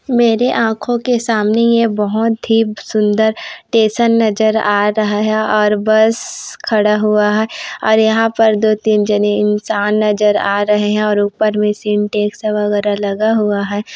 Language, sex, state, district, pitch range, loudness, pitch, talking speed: Hindi, female, Chhattisgarh, Korba, 210-225 Hz, -14 LUFS, 215 Hz, 160 wpm